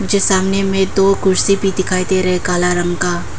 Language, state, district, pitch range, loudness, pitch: Hindi, Arunachal Pradesh, Papum Pare, 180-195 Hz, -15 LUFS, 190 Hz